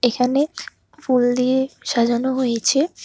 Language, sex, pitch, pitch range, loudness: Bengali, male, 260 Hz, 245-280 Hz, -19 LUFS